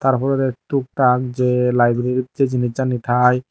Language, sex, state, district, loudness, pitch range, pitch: Chakma, male, Tripura, Dhalai, -18 LUFS, 125-135 Hz, 125 Hz